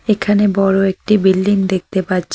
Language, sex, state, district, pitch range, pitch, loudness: Bengali, female, West Bengal, Cooch Behar, 190-205 Hz, 195 Hz, -15 LUFS